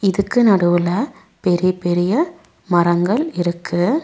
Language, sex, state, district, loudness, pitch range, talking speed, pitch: Tamil, female, Tamil Nadu, Nilgiris, -18 LUFS, 175-230 Hz, 90 wpm, 185 Hz